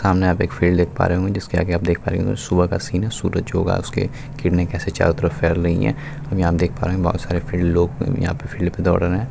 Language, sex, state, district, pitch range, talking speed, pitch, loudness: Hindi, male, Bihar, Purnia, 85-95 Hz, 330 wpm, 90 Hz, -20 LUFS